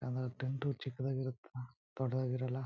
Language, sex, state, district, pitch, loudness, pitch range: Kannada, male, Karnataka, Chamarajanagar, 130 Hz, -39 LUFS, 125-130 Hz